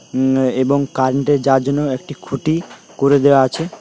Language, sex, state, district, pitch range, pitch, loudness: Bengali, male, West Bengal, Dakshin Dinajpur, 130-145 Hz, 140 Hz, -16 LUFS